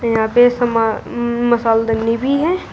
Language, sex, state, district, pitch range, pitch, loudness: Hindi, female, Uttar Pradesh, Shamli, 225-245 Hz, 235 Hz, -16 LUFS